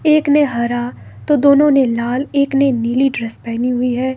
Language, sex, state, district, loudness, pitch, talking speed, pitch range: Hindi, female, Himachal Pradesh, Shimla, -15 LUFS, 255 Hz, 200 wpm, 235-280 Hz